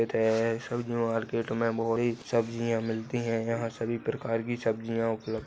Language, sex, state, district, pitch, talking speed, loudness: Hindi, male, Maharashtra, Nagpur, 115 Hz, 130 wpm, -30 LUFS